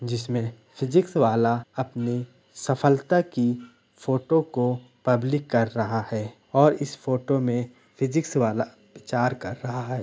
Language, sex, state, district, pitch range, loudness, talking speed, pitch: Hindi, male, Bihar, Gopalganj, 120-135 Hz, -25 LUFS, 130 wpm, 125 Hz